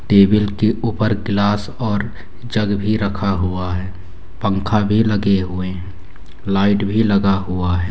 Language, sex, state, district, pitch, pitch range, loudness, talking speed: Hindi, male, West Bengal, Malda, 100 Hz, 90-105 Hz, -18 LUFS, 150 wpm